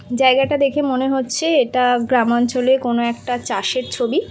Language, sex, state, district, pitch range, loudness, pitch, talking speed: Bengali, female, West Bengal, Kolkata, 240-265 Hz, -18 LUFS, 250 Hz, 155 wpm